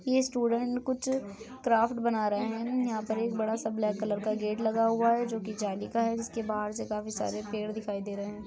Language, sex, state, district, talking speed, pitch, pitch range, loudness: Bhojpuri, female, Bihar, Saran, 240 wpm, 220 Hz, 210-235 Hz, -31 LUFS